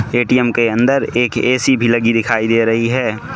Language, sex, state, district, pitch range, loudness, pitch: Hindi, male, Manipur, Imphal West, 115-125 Hz, -14 LUFS, 120 Hz